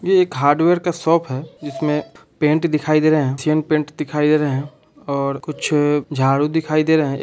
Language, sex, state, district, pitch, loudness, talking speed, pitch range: Bhojpuri, male, Bihar, Saran, 150 Hz, -18 LUFS, 205 wpm, 145-155 Hz